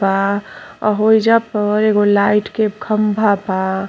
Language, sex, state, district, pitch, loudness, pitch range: Bhojpuri, female, Uttar Pradesh, Gorakhpur, 210 Hz, -15 LUFS, 200-215 Hz